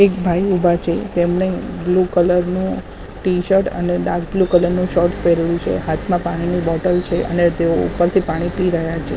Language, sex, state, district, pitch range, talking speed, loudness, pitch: Gujarati, female, Maharashtra, Mumbai Suburban, 170-185 Hz, 175 wpm, -18 LUFS, 175 Hz